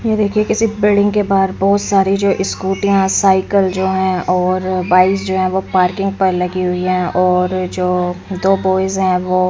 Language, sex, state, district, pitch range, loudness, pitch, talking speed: Hindi, female, Haryana, Rohtak, 185-195 Hz, -15 LUFS, 190 Hz, 190 wpm